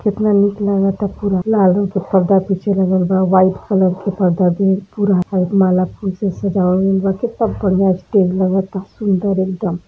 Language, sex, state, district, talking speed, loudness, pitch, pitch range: Hindi, female, Uttar Pradesh, Varanasi, 190 wpm, -16 LUFS, 195 Hz, 185-200 Hz